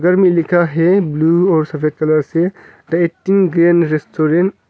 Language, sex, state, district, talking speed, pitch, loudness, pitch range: Hindi, male, Arunachal Pradesh, Longding, 180 wpm, 170 Hz, -14 LUFS, 155-180 Hz